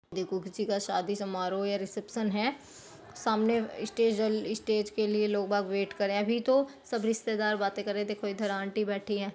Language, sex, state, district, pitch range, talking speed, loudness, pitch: Hindi, female, Uttar Pradesh, Jyotiba Phule Nagar, 200-220 Hz, 205 wpm, -31 LUFS, 210 Hz